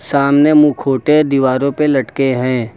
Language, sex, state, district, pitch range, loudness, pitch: Hindi, male, Uttar Pradesh, Lucknow, 130-150 Hz, -13 LUFS, 140 Hz